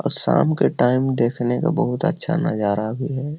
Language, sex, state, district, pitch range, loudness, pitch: Hindi, male, Bihar, Lakhisarai, 120-165 Hz, -20 LUFS, 135 Hz